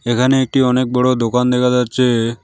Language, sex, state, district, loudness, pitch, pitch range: Bengali, male, West Bengal, Alipurduar, -15 LUFS, 125 Hz, 120-130 Hz